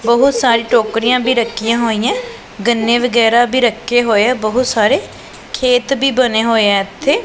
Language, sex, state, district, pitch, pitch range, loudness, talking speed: Punjabi, female, Punjab, Pathankot, 235 Hz, 225-255 Hz, -13 LUFS, 175 wpm